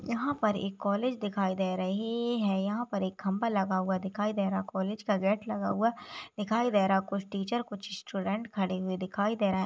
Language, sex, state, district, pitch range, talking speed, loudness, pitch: Hindi, female, Chhattisgarh, Raigarh, 190-215 Hz, 210 wpm, -31 LUFS, 200 Hz